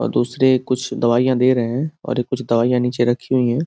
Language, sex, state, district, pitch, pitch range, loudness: Hindi, male, Uttar Pradesh, Gorakhpur, 125 Hz, 120-130 Hz, -18 LUFS